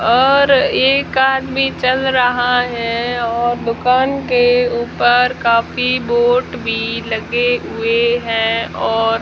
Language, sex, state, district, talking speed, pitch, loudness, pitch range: Hindi, female, Rajasthan, Jaisalmer, 110 wpm, 245 Hz, -15 LUFS, 235-260 Hz